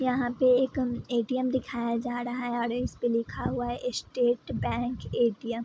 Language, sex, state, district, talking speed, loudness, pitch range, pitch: Hindi, female, Bihar, Vaishali, 180 wpm, -29 LUFS, 235-250 Hz, 245 Hz